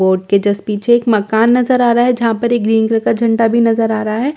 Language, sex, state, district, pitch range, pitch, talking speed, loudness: Hindi, female, Bihar, Katihar, 215-235 Hz, 225 Hz, 345 wpm, -13 LUFS